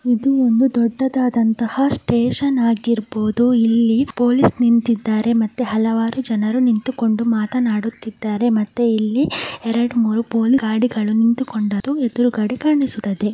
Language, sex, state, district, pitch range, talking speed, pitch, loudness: Kannada, male, Karnataka, Mysore, 220-245 Hz, 90 wpm, 235 Hz, -18 LUFS